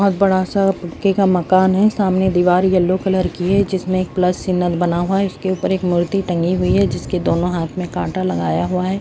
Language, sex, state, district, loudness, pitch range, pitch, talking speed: Hindi, female, Bihar, Madhepura, -17 LUFS, 180-190 Hz, 185 Hz, 235 wpm